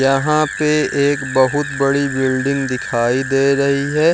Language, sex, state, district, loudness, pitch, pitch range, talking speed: Hindi, male, Bihar, Jamui, -16 LUFS, 140 Hz, 135-145 Hz, 145 wpm